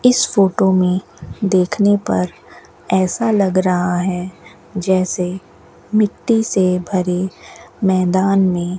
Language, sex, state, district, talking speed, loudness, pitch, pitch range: Hindi, female, Rajasthan, Bikaner, 110 wpm, -17 LUFS, 185 Hz, 180-200 Hz